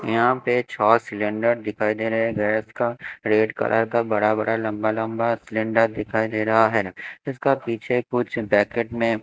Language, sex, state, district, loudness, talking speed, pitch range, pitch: Hindi, male, Haryana, Jhajjar, -22 LUFS, 170 wpm, 110-115 Hz, 110 Hz